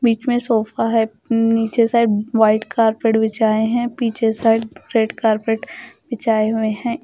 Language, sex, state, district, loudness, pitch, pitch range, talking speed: Hindi, female, Punjab, Fazilka, -18 LUFS, 225 Hz, 220-235 Hz, 155 wpm